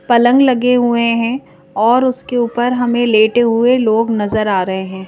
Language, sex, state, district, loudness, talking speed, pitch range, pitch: Hindi, female, Madhya Pradesh, Bhopal, -13 LUFS, 175 wpm, 215-245 Hz, 235 Hz